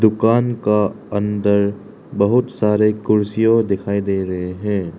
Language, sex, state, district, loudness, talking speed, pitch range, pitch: Hindi, male, Arunachal Pradesh, Lower Dibang Valley, -18 LUFS, 120 wpm, 100-110 Hz, 105 Hz